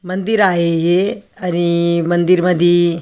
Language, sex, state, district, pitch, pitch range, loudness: Marathi, male, Maharashtra, Aurangabad, 175 Hz, 170-185 Hz, -15 LUFS